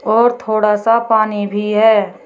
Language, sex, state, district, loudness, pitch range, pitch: Hindi, female, Uttar Pradesh, Shamli, -14 LUFS, 210-225 Hz, 215 Hz